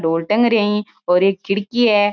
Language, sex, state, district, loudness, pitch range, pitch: Marwari, female, Rajasthan, Churu, -17 LUFS, 190-215 Hz, 205 Hz